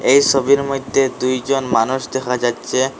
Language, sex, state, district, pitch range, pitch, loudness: Bengali, male, Assam, Hailakandi, 125-135 Hz, 130 Hz, -17 LUFS